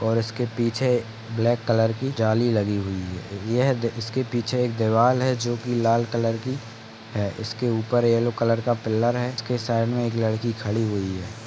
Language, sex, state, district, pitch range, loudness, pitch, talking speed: Hindi, male, Uttar Pradesh, Gorakhpur, 110-120 Hz, -24 LUFS, 115 Hz, 195 wpm